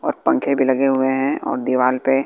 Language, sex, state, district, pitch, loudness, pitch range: Hindi, male, Bihar, West Champaran, 135 Hz, -18 LUFS, 130-135 Hz